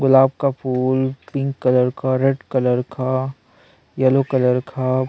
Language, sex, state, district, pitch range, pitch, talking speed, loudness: Hindi, male, Chhattisgarh, Sukma, 130-135 Hz, 130 Hz, 140 wpm, -19 LUFS